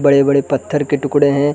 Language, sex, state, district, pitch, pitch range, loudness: Hindi, male, Bihar, Gaya, 145 Hz, 140-145 Hz, -15 LUFS